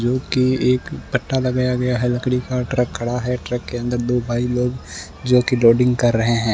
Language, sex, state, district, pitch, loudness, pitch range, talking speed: Hindi, male, Rajasthan, Bikaner, 125 Hz, -19 LUFS, 120-125 Hz, 200 wpm